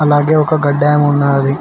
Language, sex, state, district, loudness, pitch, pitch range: Telugu, male, Telangana, Mahabubabad, -12 LUFS, 145 Hz, 140-150 Hz